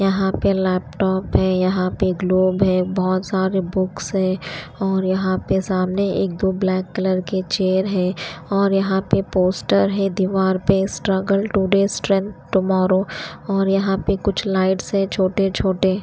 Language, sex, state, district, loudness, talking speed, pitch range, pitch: Hindi, female, Haryana, Rohtak, -19 LUFS, 155 wpm, 185-195 Hz, 190 Hz